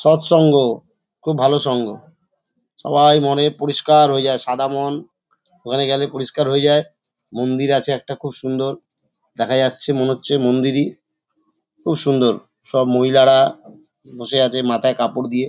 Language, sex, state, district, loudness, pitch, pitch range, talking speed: Bengali, male, West Bengal, Paschim Medinipur, -17 LUFS, 140 Hz, 130-150 Hz, 140 wpm